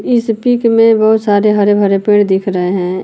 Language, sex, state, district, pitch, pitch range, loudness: Hindi, female, Uttar Pradesh, Lucknow, 205 Hz, 195-225 Hz, -11 LUFS